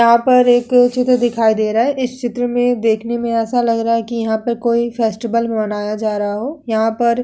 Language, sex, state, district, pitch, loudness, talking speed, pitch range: Hindi, female, Uttar Pradesh, Hamirpur, 235 Hz, -16 LUFS, 240 wpm, 225-245 Hz